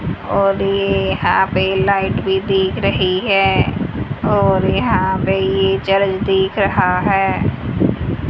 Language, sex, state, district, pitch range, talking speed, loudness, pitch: Hindi, female, Haryana, Charkhi Dadri, 185-195 Hz, 125 wpm, -16 LUFS, 195 Hz